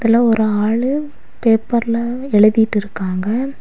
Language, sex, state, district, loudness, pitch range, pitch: Tamil, female, Tamil Nadu, Kanyakumari, -16 LUFS, 210-240 Hz, 225 Hz